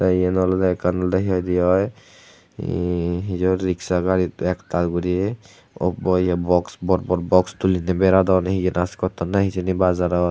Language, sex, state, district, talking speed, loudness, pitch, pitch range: Chakma, male, Tripura, Unakoti, 150 wpm, -21 LUFS, 90 Hz, 90-95 Hz